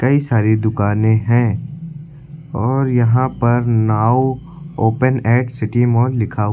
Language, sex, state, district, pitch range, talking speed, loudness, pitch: Hindi, male, Uttar Pradesh, Lucknow, 110-135 Hz, 130 wpm, -16 LUFS, 120 Hz